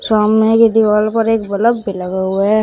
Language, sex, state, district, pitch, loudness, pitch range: Hindi, female, Uttar Pradesh, Shamli, 215 Hz, -13 LUFS, 200-225 Hz